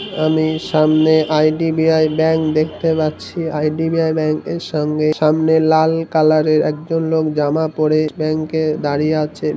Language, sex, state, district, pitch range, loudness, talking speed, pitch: Bengali, male, West Bengal, North 24 Parganas, 155-160 Hz, -16 LUFS, 140 wpm, 155 Hz